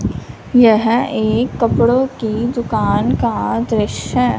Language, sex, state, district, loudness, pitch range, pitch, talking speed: Hindi, female, Punjab, Fazilka, -16 LUFS, 220-245 Hz, 235 Hz, 110 wpm